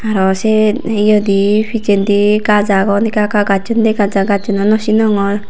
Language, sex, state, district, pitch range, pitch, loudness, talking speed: Chakma, female, Tripura, Unakoti, 200-215 Hz, 210 Hz, -13 LUFS, 165 wpm